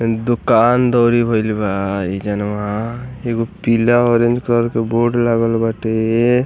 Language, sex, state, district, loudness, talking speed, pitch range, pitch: Bhojpuri, male, Bihar, East Champaran, -16 LUFS, 130 wpm, 110-120 Hz, 115 Hz